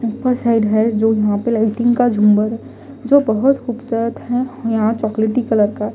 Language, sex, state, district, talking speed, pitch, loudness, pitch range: Hindi, female, Delhi, New Delhi, 180 wpm, 230 Hz, -16 LUFS, 220-245 Hz